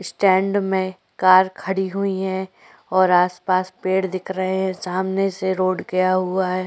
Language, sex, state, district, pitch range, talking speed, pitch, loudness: Hindi, female, Chhattisgarh, Korba, 185-190 Hz, 160 wpm, 190 Hz, -20 LUFS